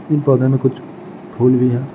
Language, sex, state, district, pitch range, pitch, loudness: Hindi, male, Bihar, Jahanabad, 125-150 Hz, 130 Hz, -15 LUFS